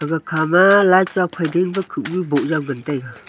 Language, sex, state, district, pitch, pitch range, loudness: Wancho, female, Arunachal Pradesh, Longding, 165 Hz, 150-185 Hz, -17 LUFS